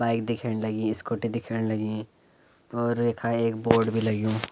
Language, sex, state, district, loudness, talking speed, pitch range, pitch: Garhwali, male, Uttarakhand, Uttarkashi, -27 LUFS, 160 wpm, 110-115 Hz, 115 Hz